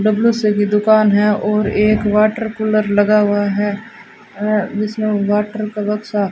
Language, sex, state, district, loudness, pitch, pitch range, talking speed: Hindi, female, Rajasthan, Bikaner, -16 LUFS, 210 Hz, 210-215 Hz, 160 wpm